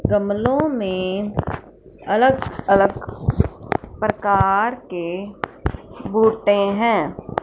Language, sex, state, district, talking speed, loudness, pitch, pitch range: Hindi, female, Punjab, Fazilka, 65 wpm, -20 LUFS, 205 Hz, 195-230 Hz